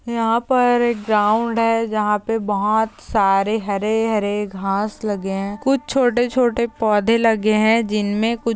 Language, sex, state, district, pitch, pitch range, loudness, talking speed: Hindi, female, Maharashtra, Chandrapur, 220 Hz, 210-230 Hz, -19 LUFS, 145 wpm